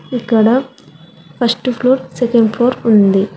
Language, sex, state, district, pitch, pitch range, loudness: Telugu, female, Telangana, Hyderabad, 235 Hz, 200-250 Hz, -13 LUFS